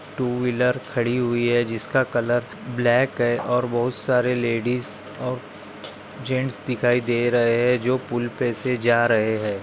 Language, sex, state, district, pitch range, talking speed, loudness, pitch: Hindi, male, Maharashtra, Chandrapur, 120-125 Hz, 155 wpm, -22 LUFS, 120 Hz